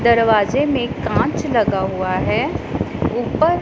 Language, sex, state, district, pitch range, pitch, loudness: Hindi, female, Punjab, Pathankot, 195-280 Hz, 230 Hz, -18 LUFS